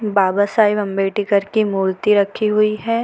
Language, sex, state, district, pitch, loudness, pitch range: Hindi, female, Chhattisgarh, Bilaspur, 205 Hz, -17 LUFS, 195-215 Hz